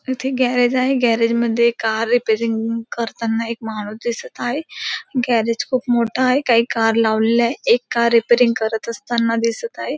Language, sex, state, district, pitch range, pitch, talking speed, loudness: Marathi, female, Maharashtra, Pune, 230-245 Hz, 235 Hz, 160 wpm, -18 LUFS